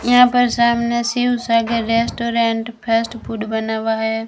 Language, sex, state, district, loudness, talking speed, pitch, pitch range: Hindi, female, Rajasthan, Bikaner, -18 LUFS, 155 wpm, 230 Hz, 225-235 Hz